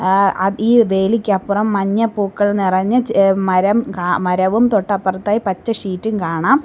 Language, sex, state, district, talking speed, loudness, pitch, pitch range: Malayalam, female, Kerala, Kollam, 125 wpm, -16 LUFS, 200 Hz, 190-220 Hz